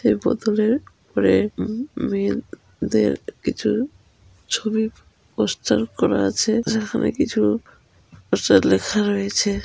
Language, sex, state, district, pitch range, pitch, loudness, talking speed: Bengali, female, West Bengal, Dakshin Dinajpur, 200-225 Hz, 215 Hz, -21 LUFS, 100 wpm